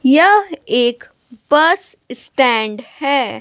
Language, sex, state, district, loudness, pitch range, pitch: Hindi, female, Bihar, West Champaran, -15 LUFS, 240-335 Hz, 275 Hz